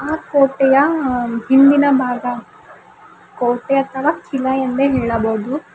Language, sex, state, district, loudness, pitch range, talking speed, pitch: Kannada, female, Karnataka, Bidar, -16 LUFS, 245-280 Hz, 95 wpm, 265 Hz